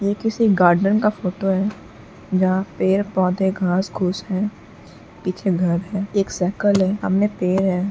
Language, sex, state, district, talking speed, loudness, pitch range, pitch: Hindi, female, Uttar Pradesh, Muzaffarnagar, 160 wpm, -20 LUFS, 185-200 Hz, 190 Hz